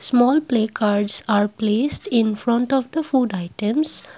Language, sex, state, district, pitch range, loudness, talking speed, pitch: English, female, Assam, Kamrup Metropolitan, 210-260 Hz, -18 LUFS, 155 wpm, 230 Hz